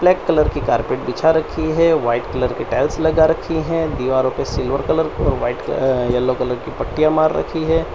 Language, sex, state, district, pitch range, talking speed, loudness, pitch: Hindi, male, Gujarat, Valsad, 125-160 Hz, 210 wpm, -18 LUFS, 155 Hz